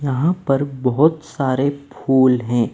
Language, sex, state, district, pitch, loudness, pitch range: Hindi, male, Maharashtra, Mumbai Suburban, 135 Hz, -18 LUFS, 130-145 Hz